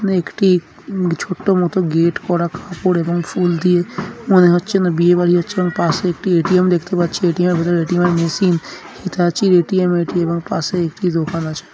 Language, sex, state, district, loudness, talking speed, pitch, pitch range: Bengali, male, West Bengal, Dakshin Dinajpur, -16 LUFS, 165 wpm, 175 Hz, 170-185 Hz